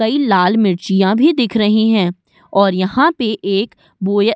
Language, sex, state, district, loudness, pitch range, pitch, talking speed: Hindi, female, Uttar Pradesh, Budaun, -15 LUFS, 195-225 Hz, 210 Hz, 180 wpm